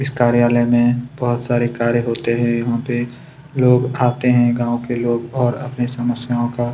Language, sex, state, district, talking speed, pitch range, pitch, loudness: Hindi, male, Chhattisgarh, Kabirdham, 180 wpm, 120-125 Hz, 120 Hz, -18 LUFS